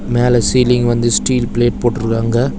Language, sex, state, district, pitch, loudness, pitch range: Tamil, male, Tamil Nadu, Chennai, 120 Hz, -14 LUFS, 115-125 Hz